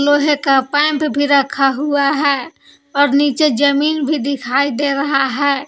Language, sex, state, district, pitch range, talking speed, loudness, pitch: Hindi, female, Jharkhand, Palamu, 275-290 Hz, 160 wpm, -15 LUFS, 285 Hz